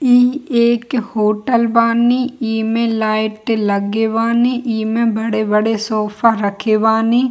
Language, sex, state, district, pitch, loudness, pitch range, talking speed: Hindi, female, Bihar, Kishanganj, 225 Hz, -16 LUFS, 215-235 Hz, 90 wpm